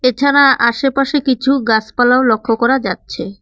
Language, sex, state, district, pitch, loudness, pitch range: Bengali, female, West Bengal, Cooch Behar, 255 Hz, -13 LUFS, 230-275 Hz